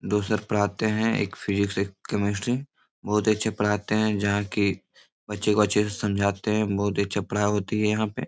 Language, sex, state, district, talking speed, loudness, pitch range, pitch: Hindi, male, Bihar, Supaul, 180 wpm, -25 LUFS, 100-105 Hz, 105 Hz